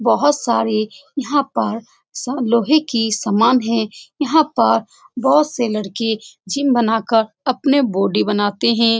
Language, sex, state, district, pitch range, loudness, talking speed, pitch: Hindi, female, Bihar, Saran, 220-275 Hz, -17 LUFS, 140 wpm, 235 Hz